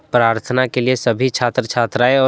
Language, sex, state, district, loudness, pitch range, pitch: Hindi, male, Jharkhand, Deoghar, -17 LUFS, 120-130 Hz, 125 Hz